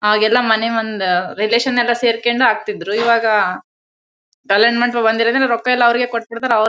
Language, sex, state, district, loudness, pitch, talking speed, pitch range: Kannada, female, Karnataka, Bellary, -15 LUFS, 230 Hz, 145 wpm, 210-240 Hz